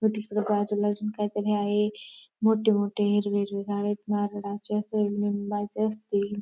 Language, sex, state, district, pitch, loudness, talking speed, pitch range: Marathi, female, Maharashtra, Dhule, 205 Hz, -27 LUFS, 160 wpm, 205-210 Hz